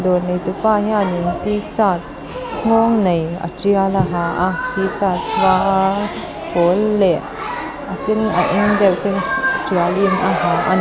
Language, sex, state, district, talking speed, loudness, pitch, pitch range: Mizo, female, Mizoram, Aizawl, 150 wpm, -17 LUFS, 195 Hz, 180-210 Hz